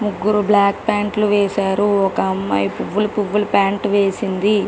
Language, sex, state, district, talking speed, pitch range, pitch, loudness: Telugu, female, Telangana, Karimnagar, 140 wpm, 195-210 Hz, 205 Hz, -17 LUFS